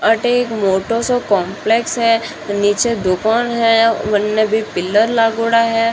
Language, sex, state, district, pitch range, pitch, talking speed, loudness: Marwari, female, Rajasthan, Churu, 205-230 Hz, 225 Hz, 130 wpm, -15 LUFS